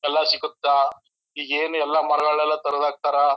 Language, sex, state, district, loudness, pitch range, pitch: Kannada, male, Karnataka, Chamarajanagar, -21 LUFS, 145-155 Hz, 150 Hz